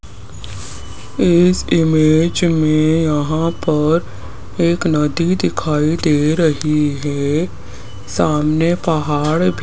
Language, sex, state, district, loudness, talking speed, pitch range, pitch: Hindi, male, Rajasthan, Jaipur, -16 LUFS, 95 wpm, 115-165 Hz, 150 Hz